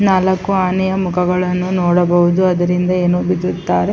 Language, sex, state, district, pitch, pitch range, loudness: Kannada, female, Karnataka, Chamarajanagar, 180 Hz, 180-185 Hz, -15 LUFS